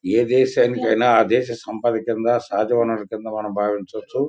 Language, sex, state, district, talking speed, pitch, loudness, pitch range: Telugu, male, Andhra Pradesh, Guntur, 155 wpm, 115 Hz, -20 LUFS, 110-120 Hz